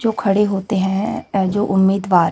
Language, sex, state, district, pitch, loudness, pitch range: Hindi, female, Chhattisgarh, Raipur, 195 Hz, -17 LUFS, 190-205 Hz